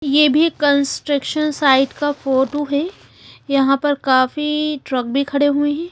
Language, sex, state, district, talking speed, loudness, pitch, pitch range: Hindi, female, Haryana, Charkhi Dadri, 150 wpm, -17 LUFS, 285 Hz, 275-300 Hz